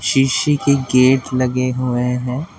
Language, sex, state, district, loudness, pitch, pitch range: Hindi, male, Delhi, New Delhi, -16 LUFS, 130 Hz, 125-135 Hz